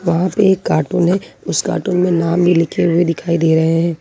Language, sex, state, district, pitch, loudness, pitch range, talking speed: Hindi, female, Jharkhand, Ranchi, 170 Hz, -15 LUFS, 165-180 Hz, 240 wpm